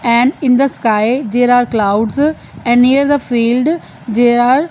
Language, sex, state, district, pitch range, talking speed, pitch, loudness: English, female, Punjab, Fazilka, 235-270 Hz, 180 wpm, 245 Hz, -13 LUFS